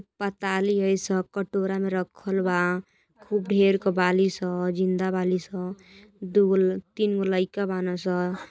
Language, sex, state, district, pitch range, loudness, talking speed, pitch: Bhojpuri, female, Uttar Pradesh, Gorakhpur, 185-200 Hz, -25 LUFS, 155 wpm, 190 Hz